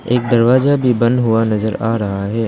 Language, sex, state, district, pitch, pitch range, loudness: Hindi, male, Arunachal Pradesh, Lower Dibang Valley, 115 Hz, 110-125 Hz, -15 LUFS